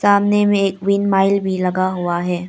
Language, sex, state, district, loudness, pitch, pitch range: Hindi, female, Arunachal Pradesh, Lower Dibang Valley, -17 LUFS, 195 Hz, 180-200 Hz